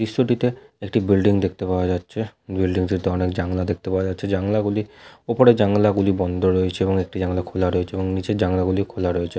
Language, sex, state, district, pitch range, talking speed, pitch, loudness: Bengali, male, West Bengal, Jhargram, 90-105 Hz, 205 wpm, 95 Hz, -21 LUFS